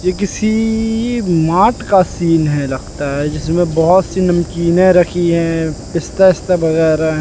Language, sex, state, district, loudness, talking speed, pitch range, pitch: Hindi, male, Madhya Pradesh, Katni, -14 LUFS, 140 wpm, 160-185 Hz, 170 Hz